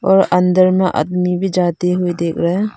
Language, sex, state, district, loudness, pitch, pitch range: Hindi, female, Arunachal Pradesh, Papum Pare, -15 LUFS, 180 Hz, 175-185 Hz